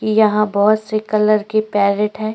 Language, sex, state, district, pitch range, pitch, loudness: Hindi, female, Goa, North and South Goa, 210-215 Hz, 215 Hz, -16 LUFS